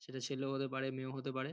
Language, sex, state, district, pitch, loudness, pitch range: Bengali, male, West Bengal, North 24 Parganas, 135 Hz, -40 LUFS, 130-135 Hz